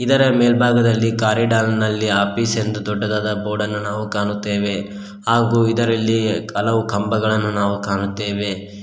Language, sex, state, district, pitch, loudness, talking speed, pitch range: Kannada, male, Karnataka, Koppal, 105 Hz, -18 LUFS, 110 wpm, 100-115 Hz